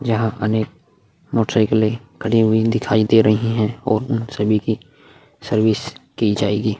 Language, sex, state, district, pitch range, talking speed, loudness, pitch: Hindi, male, Bihar, Vaishali, 110-115 Hz, 140 wpm, -18 LUFS, 110 Hz